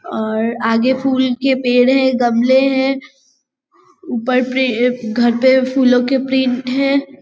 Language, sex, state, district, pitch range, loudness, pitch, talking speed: Hindi, female, Bihar, Vaishali, 245-270 Hz, -15 LUFS, 260 Hz, 135 wpm